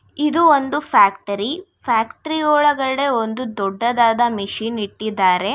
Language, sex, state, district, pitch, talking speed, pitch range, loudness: Kannada, female, Karnataka, Bangalore, 235 Hz, 95 wpm, 205-295 Hz, -18 LUFS